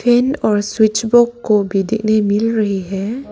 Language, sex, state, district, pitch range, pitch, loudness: Hindi, female, Arunachal Pradesh, Lower Dibang Valley, 205-240 Hz, 215 Hz, -16 LUFS